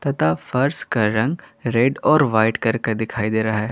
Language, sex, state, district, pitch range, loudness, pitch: Hindi, male, Jharkhand, Garhwa, 110-135 Hz, -19 LUFS, 115 Hz